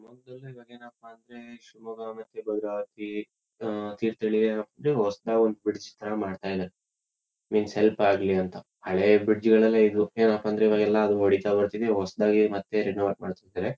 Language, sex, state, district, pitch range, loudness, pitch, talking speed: Kannada, male, Karnataka, Shimoga, 105-115 Hz, -25 LUFS, 105 Hz, 150 wpm